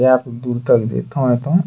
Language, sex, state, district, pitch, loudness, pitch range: Angika, male, Bihar, Bhagalpur, 125 Hz, -17 LUFS, 120-135 Hz